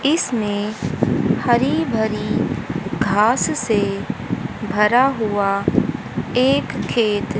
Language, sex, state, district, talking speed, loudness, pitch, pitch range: Hindi, female, Haryana, Jhajjar, 75 wpm, -19 LUFS, 220 Hz, 210-255 Hz